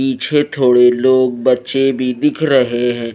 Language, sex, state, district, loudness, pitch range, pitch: Hindi, male, Haryana, Rohtak, -14 LUFS, 125-135 Hz, 130 Hz